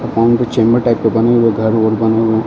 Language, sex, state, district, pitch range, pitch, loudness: Hindi, male, Uttar Pradesh, Ghazipur, 110-120 Hz, 115 Hz, -13 LUFS